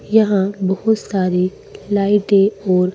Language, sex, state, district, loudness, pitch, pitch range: Hindi, female, Madhya Pradesh, Bhopal, -17 LUFS, 195 Hz, 185-205 Hz